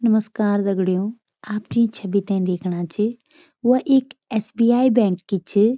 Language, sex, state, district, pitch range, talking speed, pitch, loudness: Garhwali, female, Uttarakhand, Tehri Garhwal, 195-240 Hz, 145 wpm, 215 Hz, -21 LUFS